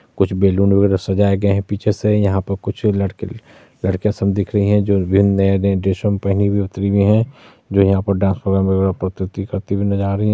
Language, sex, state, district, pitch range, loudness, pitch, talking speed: Maithili, male, Bihar, Supaul, 95-100 Hz, -17 LUFS, 100 Hz, 230 wpm